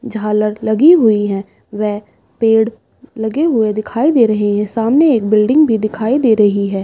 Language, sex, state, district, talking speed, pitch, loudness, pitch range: Hindi, female, Uttar Pradesh, Budaun, 175 wpm, 220 Hz, -13 LUFS, 210-240 Hz